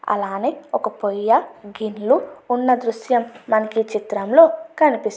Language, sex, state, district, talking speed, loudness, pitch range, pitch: Telugu, female, Andhra Pradesh, Guntur, 130 wpm, -19 LUFS, 210-255 Hz, 225 Hz